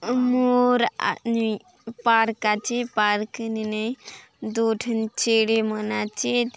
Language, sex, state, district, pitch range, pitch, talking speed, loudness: Halbi, female, Chhattisgarh, Bastar, 215-240 Hz, 225 Hz, 120 wpm, -23 LUFS